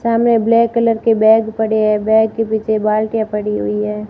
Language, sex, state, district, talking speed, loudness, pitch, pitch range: Hindi, female, Rajasthan, Barmer, 205 wpm, -15 LUFS, 220 Hz, 215-225 Hz